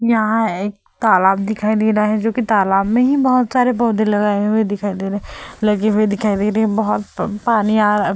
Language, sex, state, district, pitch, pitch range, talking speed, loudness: Hindi, female, Uttar Pradesh, Hamirpur, 215 Hz, 205-225 Hz, 240 wpm, -16 LUFS